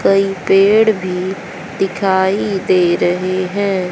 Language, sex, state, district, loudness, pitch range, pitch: Hindi, female, Haryana, Jhajjar, -15 LUFS, 185-195 Hz, 190 Hz